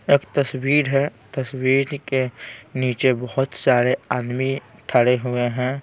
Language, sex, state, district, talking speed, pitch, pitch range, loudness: Hindi, male, Bihar, Patna, 125 wpm, 130 Hz, 125-135 Hz, -21 LUFS